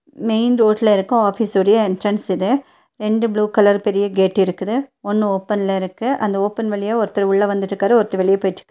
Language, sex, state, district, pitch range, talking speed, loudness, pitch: Tamil, female, Tamil Nadu, Nilgiris, 195-225 Hz, 165 wpm, -17 LUFS, 205 Hz